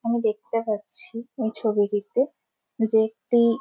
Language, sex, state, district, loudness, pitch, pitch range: Bengali, female, West Bengal, Malda, -25 LUFS, 225 Hz, 215-235 Hz